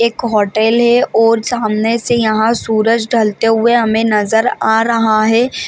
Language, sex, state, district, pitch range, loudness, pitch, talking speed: Hindi, female, Maharashtra, Chandrapur, 220-235 Hz, -13 LUFS, 225 Hz, 170 wpm